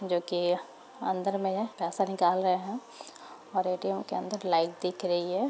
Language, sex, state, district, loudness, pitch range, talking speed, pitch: Hindi, female, Uttar Pradesh, Etah, -30 LUFS, 175-195 Hz, 185 wpm, 185 Hz